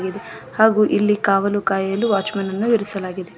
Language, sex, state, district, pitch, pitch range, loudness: Kannada, female, Karnataka, Koppal, 200 Hz, 195-210 Hz, -19 LUFS